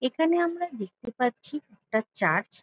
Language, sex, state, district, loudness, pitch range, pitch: Bengali, female, West Bengal, Jalpaiguri, -28 LUFS, 200-300 Hz, 235 Hz